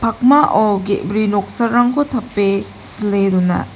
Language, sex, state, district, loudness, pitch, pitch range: Garo, female, Meghalaya, West Garo Hills, -16 LUFS, 210 Hz, 200-240 Hz